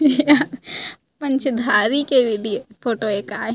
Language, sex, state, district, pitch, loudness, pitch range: Chhattisgarhi, female, Chhattisgarh, Raigarh, 255 Hz, -20 LUFS, 215-285 Hz